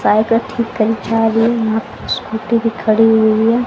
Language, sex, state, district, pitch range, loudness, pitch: Hindi, female, Haryana, Charkhi Dadri, 220-230 Hz, -15 LUFS, 225 Hz